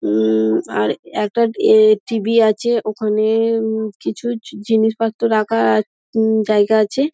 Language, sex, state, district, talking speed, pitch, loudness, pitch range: Bengali, female, West Bengal, Dakshin Dinajpur, 135 wpm, 220 Hz, -17 LUFS, 210-225 Hz